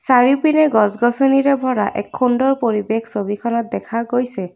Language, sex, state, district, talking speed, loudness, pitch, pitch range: Assamese, female, Assam, Kamrup Metropolitan, 130 wpm, -17 LUFS, 240 Hz, 220-265 Hz